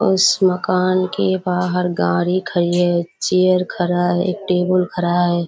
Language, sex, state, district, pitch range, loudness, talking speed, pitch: Hindi, female, Bihar, Kishanganj, 175-185 Hz, -17 LUFS, 140 wpm, 180 Hz